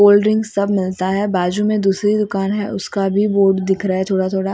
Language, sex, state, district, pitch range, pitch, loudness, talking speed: Hindi, female, Maharashtra, Mumbai Suburban, 190-205 Hz, 195 Hz, -17 LUFS, 240 wpm